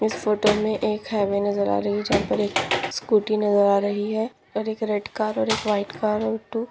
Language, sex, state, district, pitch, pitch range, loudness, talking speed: Hindi, female, Maharashtra, Solapur, 210 Hz, 205-215 Hz, -23 LUFS, 240 wpm